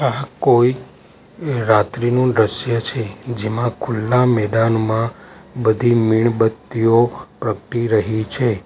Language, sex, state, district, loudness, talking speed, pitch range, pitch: Gujarati, male, Gujarat, Valsad, -18 LUFS, 85 wpm, 110-125 Hz, 115 Hz